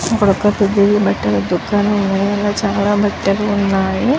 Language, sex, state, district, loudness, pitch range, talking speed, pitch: Telugu, female, Andhra Pradesh, Chittoor, -15 LUFS, 195-205 Hz, 130 wpm, 200 Hz